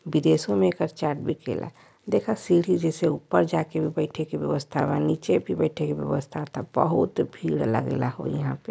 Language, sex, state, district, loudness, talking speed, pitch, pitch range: Bhojpuri, female, Uttar Pradesh, Varanasi, -25 LUFS, 205 wpm, 155 Hz, 150-165 Hz